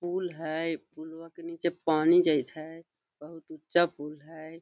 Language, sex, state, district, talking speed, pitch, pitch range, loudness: Magahi, female, Bihar, Gaya, 155 wpm, 160 Hz, 155-170 Hz, -28 LUFS